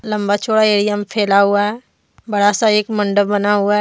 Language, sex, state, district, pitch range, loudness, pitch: Hindi, female, Jharkhand, Deoghar, 205-210 Hz, -15 LUFS, 205 Hz